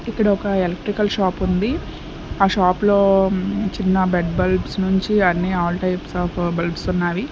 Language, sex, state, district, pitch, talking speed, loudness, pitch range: Telugu, female, Andhra Pradesh, Sri Satya Sai, 185 Hz, 150 wpm, -19 LUFS, 180-200 Hz